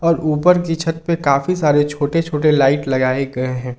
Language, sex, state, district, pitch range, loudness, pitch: Hindi, male, Jharkhand, Ranchi, 135-165 Hz, -17 LUFS, 150 Hz